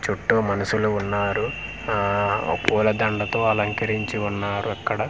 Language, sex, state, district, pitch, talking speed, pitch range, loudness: Telugu, male, Andhra Pradesh, Manyam, 105 Hz, 130 wpm, 100-110 Hz, -23 LUFS